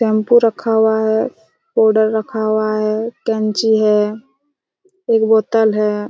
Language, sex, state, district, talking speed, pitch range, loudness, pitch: Hindi, female, Chhattisgarh, Raigarh, 155 wpm, 215-230 Hz, -15 LUFS, 220 Hz